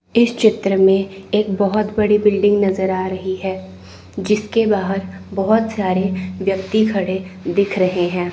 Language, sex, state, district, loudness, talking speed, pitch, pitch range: Hindi, female, Chandigarh, Chandigarh, -18 LUFS, 145 wpm, 195 Hz, 185-210 Hz